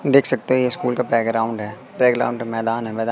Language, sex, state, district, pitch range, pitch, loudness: Hindi, male, Madhya Pradesh, Katni, 115-125 Hz, 120 Hz, -19 LUFS